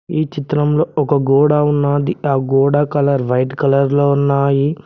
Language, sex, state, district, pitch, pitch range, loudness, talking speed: Telugu, male, Telangana, Mahabubabad, 145 Hz, 140-150 Hz, -15 LUFS, 150 wpm